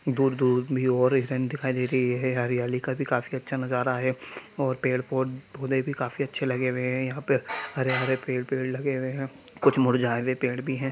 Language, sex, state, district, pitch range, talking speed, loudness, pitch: Hindi, male, Bihar, Sitamarhi, 125-135 Hz, 215 wpm, -27 LUFS, 130 Hz